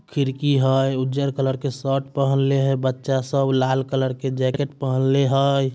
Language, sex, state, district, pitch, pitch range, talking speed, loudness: Magahi, male, Bihar, Samastipur, 135 Hz, 130-140 Hz, 165 wpm, -21 LUFS